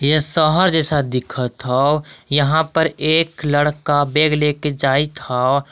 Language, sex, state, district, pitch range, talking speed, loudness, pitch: Magahi, male, Jharkhand, Palamu, 140-155 Hz, 135 wpm, -17 LUFS, 150 Hz